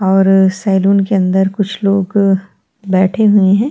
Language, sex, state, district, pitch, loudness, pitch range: Hindi, female, Chhattisgarh, Kabirdham, 195 Hz, -12 LUFS, 190-200 Hz